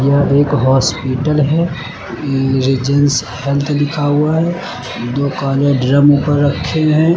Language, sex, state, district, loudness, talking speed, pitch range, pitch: Hindi, male, Uttar Pradesh, Lucknow, -14 LUFS, 135 wpm, 135-150 Hz, 140 Hz